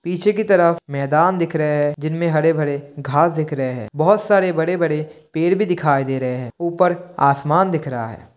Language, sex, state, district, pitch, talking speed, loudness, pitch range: Hindi, male, Bihar, Kishanganj, 155 Hz, 195 wpm, -18 LUFS, 140-175 Hz